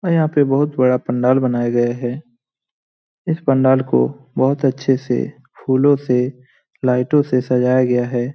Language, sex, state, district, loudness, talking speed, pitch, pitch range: Hindi, male, Bihar, Lakhisarai, -17 LUFS, 160 wpm, 130 Hz, 125-135 Hz